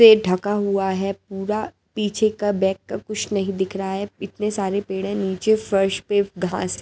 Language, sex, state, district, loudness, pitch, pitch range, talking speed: Hindi, female, Delhi, New Delhi, -22 LUFS, 200 Hz, 190-210 Hz, 195 wpm